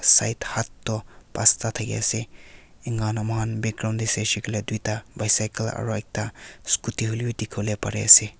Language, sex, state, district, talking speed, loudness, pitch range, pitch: Nagamese, male, Nagaland, Kohima, 195 wpm, -23 LUFS, 105-110 Hz, 110 Hz